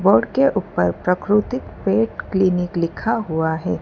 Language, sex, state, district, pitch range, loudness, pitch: Hindi, female, Gujarat, Valsad, 170-215 Hz, -20 LUFS, 190 Hz